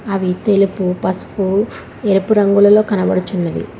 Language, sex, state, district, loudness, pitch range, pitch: Telugu, female, Telangana, Hyderabad, -15 LUFS, 185-205 Hz, 195 Hz